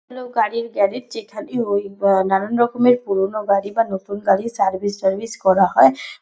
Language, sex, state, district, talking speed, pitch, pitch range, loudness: Bengali, female, West Bengal, Dakshin Dinajpur, 175 wpm, 200 Hz, 195-235 Hz, -18 LUFS